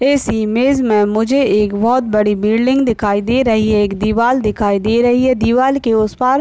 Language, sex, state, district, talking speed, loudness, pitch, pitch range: Hindi, male, Bihar, Madhepura, 215 wpm, -14 LUFS, 225 Hz, 210-255 Hz